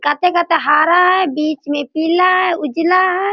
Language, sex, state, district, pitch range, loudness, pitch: Hindi, female, Bihar, Sitamarhi, 300-365 Hz, -14 LUFS, 340 Hz